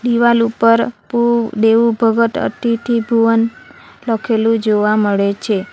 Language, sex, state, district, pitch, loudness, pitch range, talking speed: Gujarati, female, Gujarat, Valsad, 230 Hz, -15 LUFS, 220-235 Hz, 115 wpm